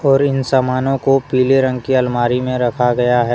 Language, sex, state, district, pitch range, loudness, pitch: Hindi, male, Jharkhand, Deoghar, 125-135 Hz, -15 LUFS, 130 Hz